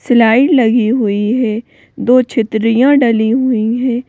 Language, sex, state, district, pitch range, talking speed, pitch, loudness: Hindi, female, Madhya Pradesh, Bhopal, 225-250 Hz, 130 wpm, 235 Hz, -12 LUFS